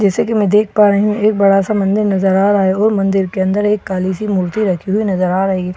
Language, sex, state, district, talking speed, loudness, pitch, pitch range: Hindi, female, Bihar, Katihar, 310 wpm, -14 LUFS, 200 Hz, 190-210 Hz